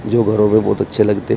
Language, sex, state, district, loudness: Hindi, male, Uttar Pradesh, Shamli, -15 LUFS